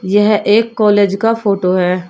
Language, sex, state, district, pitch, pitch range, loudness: Hindi, female, Uttar Pradesh, Shamli, 205 Hz, 185-215 Hz, -13 LUFS